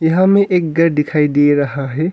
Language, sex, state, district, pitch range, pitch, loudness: Hindi, male, Arunachal Pradesh, Longding, 145-170 Hz, 155 Hz, -14 LUFS